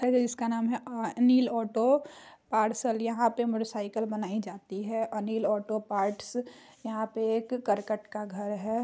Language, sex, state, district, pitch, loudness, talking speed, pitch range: Hindi, female, Bihar, Muzaffarpur, 225 Hz, -30 LUFS, 130 wpm, 210-235 Hz